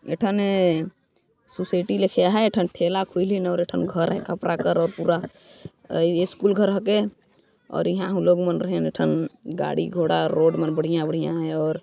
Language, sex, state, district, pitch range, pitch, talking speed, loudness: Sadri, female, Chhattisgarh, Jashpur, 165-190 Hz, 175 Hz, 175 wpm, -23 LUFS